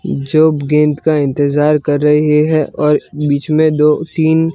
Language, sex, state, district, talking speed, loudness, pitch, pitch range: Hindi, male, Gujarat, Gandhinagar, 160 wpm, -13 LUFS, 150 Hz, 150-155 Hz